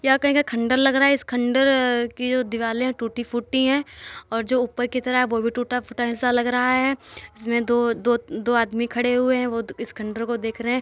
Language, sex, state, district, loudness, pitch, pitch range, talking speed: Hindi, male, Uttar Pradesh, Muzaffarnagar, -22 LUFS, 245 Hz, 235-255 Hz, 245 wpm